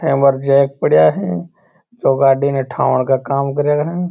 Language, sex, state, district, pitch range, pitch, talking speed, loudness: Marwari, male, Rajasthan, Churu, 135-145 Hz, 140 Hz, 205 wpm, -15 LUFS